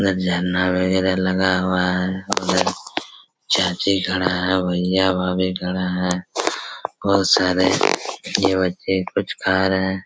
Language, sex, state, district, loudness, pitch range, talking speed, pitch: Hindi, male, Chhattisgarh, Raigarh, -20 LUFS, 90-95 Hz, 125 wpm, 95 Hz